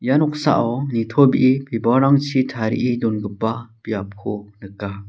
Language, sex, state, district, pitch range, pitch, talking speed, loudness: Garo, male, Meghalaya, South Garo Hills, 105-130 Hz, 115 Hz, 95 wpm, -19 LUFS